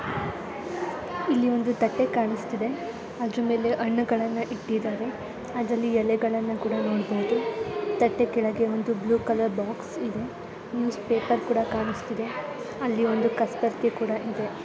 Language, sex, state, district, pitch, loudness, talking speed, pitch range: Kannada, female, Karnataka, Dharwad, 230 Hz, -27 LUFS, 125 wpm, 225-235 Hz